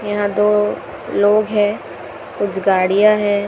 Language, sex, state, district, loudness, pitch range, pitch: Hindi, female, Chhattisgarh, Raipur, -16 LUFS, 200-210 Hz, 205 Hz